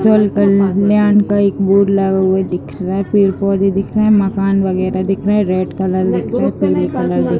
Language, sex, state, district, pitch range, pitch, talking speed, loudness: Hindi, female, Uttar Pradesh, Deoria, 185-200 Hz, 195 Hz, 220 wpm, -14 LUFS